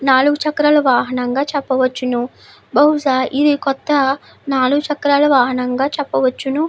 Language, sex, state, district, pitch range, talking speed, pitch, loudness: Telugu, female, Andhra Pradesh, Chittoor, 260-295 Hz, 110 wpm, 275 Hz, -16 LUFS